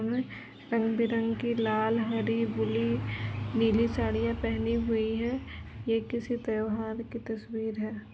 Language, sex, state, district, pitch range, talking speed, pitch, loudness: Hindi, female, Uttar Pradesh, Etah, 215-230 Hz, 120 wpm, 225 Hz, -30 LUFS